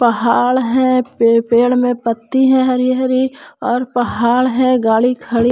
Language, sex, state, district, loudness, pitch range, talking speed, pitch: Hindi, female, Jharkhand, Palamu, -14 LUFS, 235-255 Hz, 150 wpm, 250 Hz